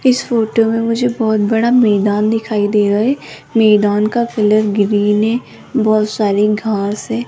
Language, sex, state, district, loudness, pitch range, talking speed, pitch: Hindi, female, Rajasthan, Jaipur, -14 LUFS, 210-230 Hz, 165 wpm, 215 Hz